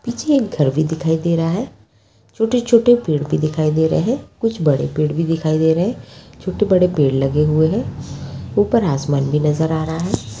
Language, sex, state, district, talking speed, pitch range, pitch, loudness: Hindi, female, Bihar, Bhagalpur, 200 wpm, 145-185 Hz, 160 Hz, -17 LUFS